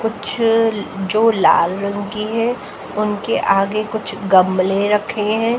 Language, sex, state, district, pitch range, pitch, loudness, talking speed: Hindi, female, Haryana, Jhajjar, 195-225 Hz, 210 Hz, -17 LUFS, 130 wpm